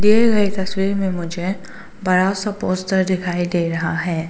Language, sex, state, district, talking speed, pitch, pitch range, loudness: Hindi, female, Arunachal Pradesh, Papum Pare, 170 wpm, 185 Hz, 175-195 Hz, -19 LUFS